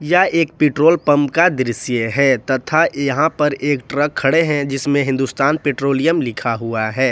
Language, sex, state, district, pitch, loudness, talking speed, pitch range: Hindi, male, Jharkhand, Ranchi, 140 Hz, -16 LUFS, 170 wpm, 130-155 Hz